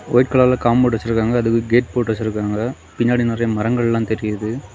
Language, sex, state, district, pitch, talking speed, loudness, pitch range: Tamil, male, Tamil Nadu, Kanyakumari, 115 Hz, 150 wpm, -18 LUFS, 110-120 Hz